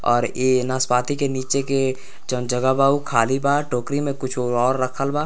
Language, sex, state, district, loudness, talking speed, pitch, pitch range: Hindi, male, Bihar, Gopalganj, -21 LUFS, 205 wpm, 130 Hz, 125-140 Hz